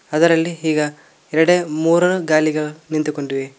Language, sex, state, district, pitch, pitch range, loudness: Kannada, male, Karnataka, Koppal, 155 Hz, 150-165 Hz, -18 LUFS